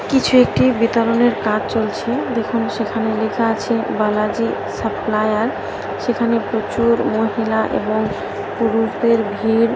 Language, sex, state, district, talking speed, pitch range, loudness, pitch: Bengali, female, West Bengal, Jhargram, 105 wpm, 220-230 Hz, -18 LUFS, 225 Hz